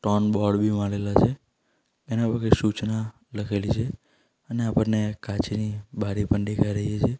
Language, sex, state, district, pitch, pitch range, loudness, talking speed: Gujarati, male, Gujarat, Valsad, 105 Hz, 105-115 Hz, -25 LUFS, 160 wpm